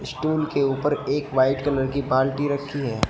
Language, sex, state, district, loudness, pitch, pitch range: Hindi, male, Uttar Pradesh, Shamli, -23 LUFS, 140 Hz, 135-145 Hz